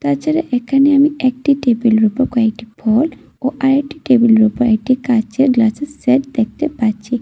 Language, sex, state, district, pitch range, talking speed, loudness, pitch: Bengali, female, Tripura, West Tripura, 230-280 Hz, 150 wpm, -15 LUFS, 255 Hz